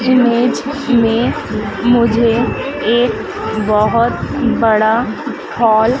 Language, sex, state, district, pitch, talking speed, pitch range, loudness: Hindi, female, Madhya Pradesh, Dhar, 235 Hz, 80 wpm, 225-245 Hz, -14 LUFS